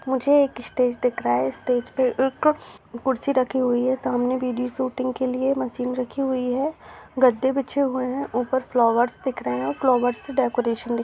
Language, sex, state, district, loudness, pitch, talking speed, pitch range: Hindi, female, Bihar, Darbhanga, -23 LUFS, 255 Hz, 195 wpm, 245-265 Hz